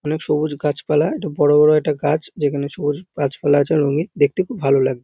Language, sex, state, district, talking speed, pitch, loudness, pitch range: Bengali, male, West Bengal, North 24 Parganas, 205 wpm, 150 Hz, -18 LUFS, 145-155 Hz